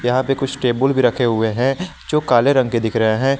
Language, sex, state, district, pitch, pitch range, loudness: Hindi, male, Jharkhand, Garhwa, 130 Hz, 120-135 Hz, -17 LUFS